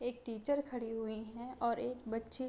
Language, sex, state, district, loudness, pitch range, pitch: Hindi, female, Uttar Pradesh, Ghazipur, -40 LUFS, 225-250 Hz, 240 Hz